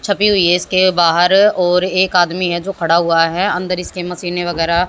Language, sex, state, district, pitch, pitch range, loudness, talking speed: Hindi, female, Haryana, Jhajjar, 180 Hz, 175-185 Hz, -14 LUFS, 210 wpm